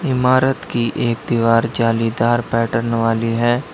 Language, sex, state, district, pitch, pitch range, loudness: Hindi, male, Uttar Pradesh, Lalitpur, 115 Hz, 115-120 Hz, -17 LUFS